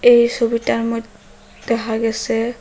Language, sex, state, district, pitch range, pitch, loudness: Bengali, female, Assam, Hailakandi, 225-235 Hz, 230 Hz, -18 LUFS